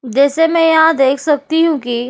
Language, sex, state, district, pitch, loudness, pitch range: Hindi, female, Uttar Pradesh, Jyotiba Phule Nagar, 300 Hz, -13 LUFS, 265-325 Hz